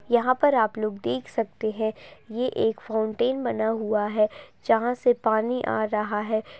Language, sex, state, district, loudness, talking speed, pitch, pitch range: Hindi, female, Uttar Pradesh, Jyotiba Phule Nagar, -25 LUFS, 180 wpm, 220 Hz, 215-245 Hz